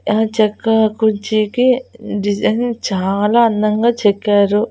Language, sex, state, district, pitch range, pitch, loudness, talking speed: Telugu, female, Andhra Pradesh, Annamaya, 205-230 Hz, 215 Hz, -15 LUFS, 90 wpm